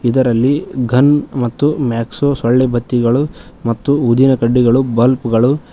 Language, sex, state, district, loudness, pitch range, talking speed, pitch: Kannada, male, Karnataka, Koppal, -14 LUFS, 120-140 Hz, 115 wpm, 125 Hz